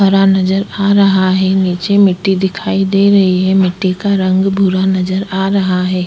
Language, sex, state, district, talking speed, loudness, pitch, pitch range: Hindi, female, Goa, North and South Goa, 190 wpm, -12 LUFS, 190 Hz, 185-195 Hz